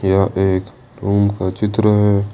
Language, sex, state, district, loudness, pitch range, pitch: Hindi, male, Jharkhand, Ranchi, -17 LUFS, 95-105 Hz, 100 Hz